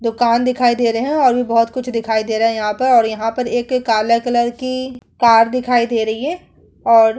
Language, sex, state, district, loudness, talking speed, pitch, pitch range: Hindi, female, Uttar Pradesh, Muzaffarnagar, -16 LUFS, 240 wpm, 235 Hz, 225-250 Hz